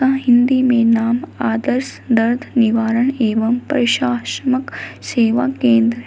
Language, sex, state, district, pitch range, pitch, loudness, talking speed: Hindi, female, Uttar Pradesh, Shamli, 230-260 Hz, 240 Hz, -16 LUFS, 110 wpm